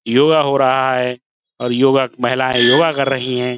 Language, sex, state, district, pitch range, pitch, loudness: Hindi, male, Uttar Pradesh, Budaun, 125-135 Hz, 130 Hz, -15 LUFS